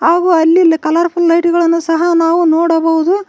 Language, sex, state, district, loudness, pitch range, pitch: Kannada, female, Karnataka, Koppal, -11 LUFS, 330-345 Hz, 335 Hz